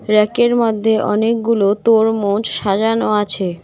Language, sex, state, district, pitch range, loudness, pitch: Bengali, female, West Bengal, Cooch Behar, 205-225 Hz, -15 LUFS, 215 Hz